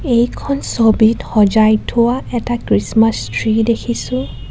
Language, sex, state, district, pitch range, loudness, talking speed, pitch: Assamese, female, Assam, Kamrup Metropolitan, 210-235 Hz, -15 LUFS, 120 wpm, 225 Hz